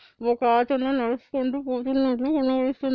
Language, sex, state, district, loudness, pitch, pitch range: Telugu, female, Andhra Pradesh, Anantapur, -24 LUFS, 260 Hz, 250-270 Hz